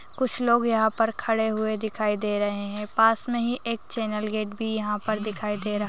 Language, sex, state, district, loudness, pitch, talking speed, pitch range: Hindi, female, Maharashtra, Solapur, -26 LUFS, 220 Hz, 225 wpm, 210-225 Hz